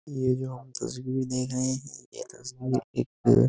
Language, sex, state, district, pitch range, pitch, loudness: Hindi, male, Uttar Pradesh, Jyotiba Phule Nagar, 125-130 Hz, 130 Hz, -30 LUFS